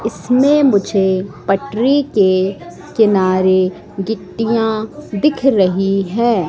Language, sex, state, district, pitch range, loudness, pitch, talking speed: Hindi, female, Madhya Pradesh, Katni, 190-235 Hz, -15 LUFS, 200 Hz, 85 wpm